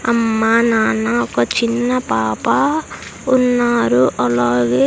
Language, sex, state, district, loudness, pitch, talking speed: Telugu, female, Andhra Pradesh, Sri Satya Sai, -16 LUFS, 220 Hz, 85 wpm